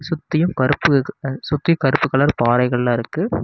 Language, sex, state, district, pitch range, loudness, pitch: Tamil, male, Tamil Nadu, Namakkal, 130-160 Hz, -18 LUFS, 140 Hz